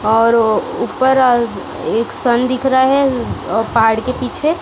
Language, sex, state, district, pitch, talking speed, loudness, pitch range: Hindi, female, Punjab, Kapurthala, 240 Hz, 155 wpm, -15 LUFS, 225-260 Hz